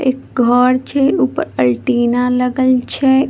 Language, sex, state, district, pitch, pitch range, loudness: Maithili, female, Bihar, Madhepura, 250 Hz, 240-260 Hz, -14 LUFS